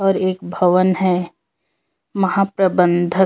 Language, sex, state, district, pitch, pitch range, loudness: Hindi, female, Chhattisgarh, Korba, 185 Hz, 180-190 Hz, -17 LUFS